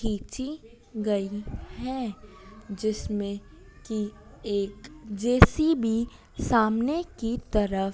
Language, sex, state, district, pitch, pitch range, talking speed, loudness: Hindi, female, Madhya Pradesh, Dhar, 220 Hz, 205-245 Hz, 75 wpm, -27 LUFS